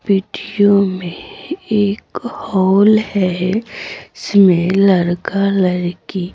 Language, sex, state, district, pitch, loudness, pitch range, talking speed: Hindi, female, Bihar, Patna, 195 Hz, -15 LUFS, 185-210 Hz, 75 wpm